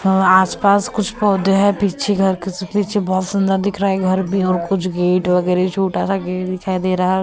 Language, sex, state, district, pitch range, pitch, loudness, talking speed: Hindi, female, Goa, North and South Goa, 185-200 Hz, 190 Hz, -17 LUFS, 225 wpm